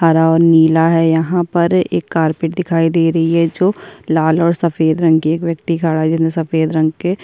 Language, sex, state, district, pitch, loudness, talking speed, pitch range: Hindi, female, Uttar Pradesh, Budaun, 165 Hz, -14 LUFS, 225 wpm, 160-170 Hz